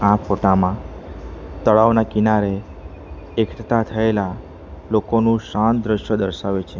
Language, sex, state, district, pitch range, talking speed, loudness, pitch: Gujarati, male, Gujarat, Valsad, 90-110 Hz, 105 wpm, -19 LUFS, 105 Hz